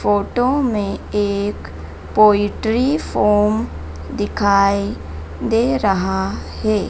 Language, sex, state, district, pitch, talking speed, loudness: Hindi, female, Madhya Pradesh, Dhar, 205 Hz, 80 wpm, -18 LUFS